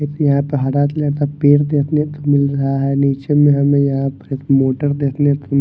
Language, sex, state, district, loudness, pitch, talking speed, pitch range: Hindi, male, Bihar, Katihar, -16 LUFS, 140 Hz, 245 wpm, 140-145 Hz